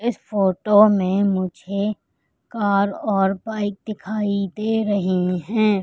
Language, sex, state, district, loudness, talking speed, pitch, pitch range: Hindi, female, Madhya Pradesh, Katni, -20 LUFS, 115 wpm, 205 Hz, 195-215 Hz